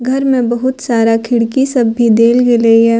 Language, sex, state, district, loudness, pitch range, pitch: Maithili, female, Bihar, Purnia, -11 LUFS, 230-255 Hz, 240 Hz